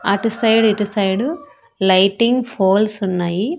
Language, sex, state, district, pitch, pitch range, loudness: Telugu, female, Andhra Pradesh, Annamaya, 210 Hz, 195-230 Hz, -17 LUFS